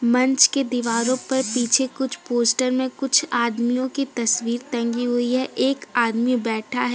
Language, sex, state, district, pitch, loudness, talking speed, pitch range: Hindi, female, Jharkhand, Deoghar, 245 Hz, -21 LUFS, 165 wpm, 240-260 Hz